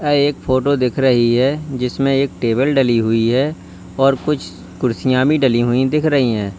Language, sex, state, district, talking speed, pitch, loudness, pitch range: Hindi, male, Uttar Pradesh, Lalitpur, 190 wpm, 130 Hz, -16 LUFS, 120-140 Hz